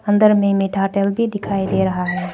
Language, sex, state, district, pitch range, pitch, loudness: Hindi, female, Arunachal Pradesh, Papum Pare, 190-205 Hz, 195 Hz, -18 LUFS